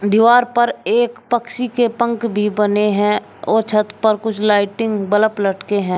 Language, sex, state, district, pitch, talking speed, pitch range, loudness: Hindi, male, Uttar Pradesh, Shamli, 215 Hz, 170 wpm, 205-235 Hz, -17 LUFS